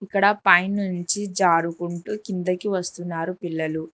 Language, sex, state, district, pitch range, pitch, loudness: Telugu, female, Telangana, Hyderabad, 170-200 Hz, 180 Hz, -23 LUFS